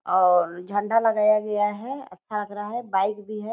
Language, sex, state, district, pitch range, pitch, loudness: Hindi, female, Bihar, Purnia, 200-215 Hz, 210 Hz, -24 LUFS